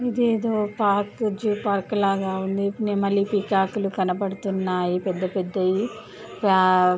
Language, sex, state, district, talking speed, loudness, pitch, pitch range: Telugu, female, Telangana, Nalgonda, 105 wpm, -23 LUFS, 200 Hz, 190-210 Hz